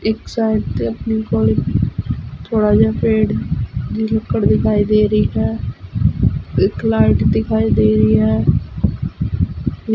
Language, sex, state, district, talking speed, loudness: Punjabi, female, Punjab, Fazilka, 120 wpm, -17 LUFS